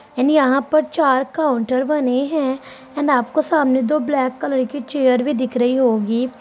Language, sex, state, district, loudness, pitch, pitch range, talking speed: Hindi, female, Bihar, Sitamarhi, -18 LUFS, 270 Hz, 255-295 Hz, 185 wpm